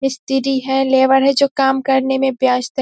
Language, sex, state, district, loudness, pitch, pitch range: Hindi, female, Bihar, Saharsa, -15 LUFS, 265 Hz, 265-270 Hz